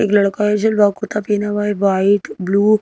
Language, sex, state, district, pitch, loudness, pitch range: Hindi, female, Madhya Pradesh, Bhopal, 205 Hz, -16 LUFS, 200-210 Hz